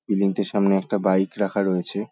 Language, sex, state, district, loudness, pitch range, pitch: Bengali, male, West Bengal, Paschim Medinipur, -22 LUFS, 95-100 Hz, 100 Hz